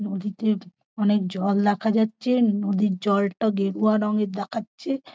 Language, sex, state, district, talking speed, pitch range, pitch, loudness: Bengali, female, West Bengal, Purulia, 115 wpm, 200-220 Hz, 210 Hz, -23 LUFS